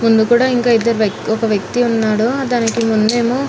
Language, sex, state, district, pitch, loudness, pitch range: Telugu, female, Telangana, Nalgonda, 230 Hz, -15 LUFS, 220-240 Hz